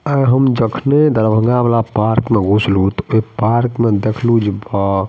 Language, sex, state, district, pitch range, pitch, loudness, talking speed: Maithili, male, Bihar, Madhepura, 105-120 Hz, 110 Hz, -14 LUFS, 200 wpm